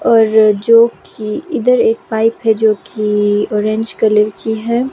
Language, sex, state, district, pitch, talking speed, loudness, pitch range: Hindi, female, Himachal Pradesh, Shimla, 220 Hz, 160 wpm, -13 LUFS, 210-230 Hz